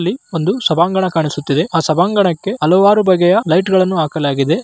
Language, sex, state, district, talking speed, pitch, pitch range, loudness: Kannada, male, Karnataka, Raichur, 140 wpm, 175 Hz, 160-190 Hz, -14 LUFS